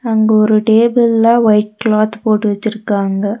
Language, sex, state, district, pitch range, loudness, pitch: Tamil, female, Tamil Nadu, Nilgiris, 210-225 Hz, -13 LUFS, 215 Hz